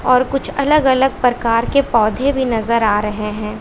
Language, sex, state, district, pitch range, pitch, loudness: Hindi, female, Bihar, West Champaran, 215-265 Hz, 235 Hz, -16 LUFS